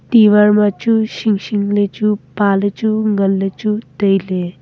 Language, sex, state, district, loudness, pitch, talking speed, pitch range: Wancho, female, Arunachal Pradesh, Longding, -15 LUFS, 205 Hz, 170 wpm, 195-215 Hz